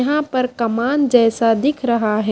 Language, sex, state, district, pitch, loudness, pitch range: Hindi, female, Haryana, Jhajjar, 240 Hz, -17 LUFS, 230-270 Hz